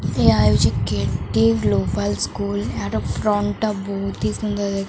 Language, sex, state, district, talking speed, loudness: Odia, female, Odisha, Khordha, 170 wpm, -20 LUFS